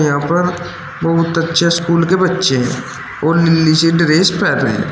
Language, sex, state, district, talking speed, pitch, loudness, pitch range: Hindi, male, Uttar Pradesh, Shamli, 145 wpm, 165 Hz, -14 LUFS, 160-175 Hz